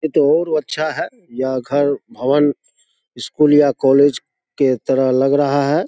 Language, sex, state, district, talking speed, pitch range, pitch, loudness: Hindi, male, Bihar, Saharsa, 175 wpm, 130-150 Hz, 140 Hz, -16 LUFS